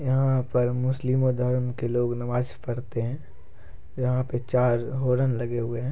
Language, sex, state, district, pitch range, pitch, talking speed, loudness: Hindi, male, Bihar, Saran, 120-130 Hz, 125 Hz, 160 wpm, -26 LUFS